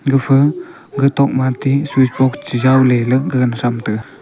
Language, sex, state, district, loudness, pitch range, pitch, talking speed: Wancho, male, Arunachal Pradesh, Longding, -15 LUFS, 125-140 Hz, 130 Hz, 140 wpm